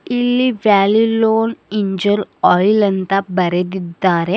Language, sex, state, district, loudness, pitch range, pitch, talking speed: Kannada, female, Karnataka, Bidar, -15 LUFS, 190-225 Hz, 205 Hz, 80 wpm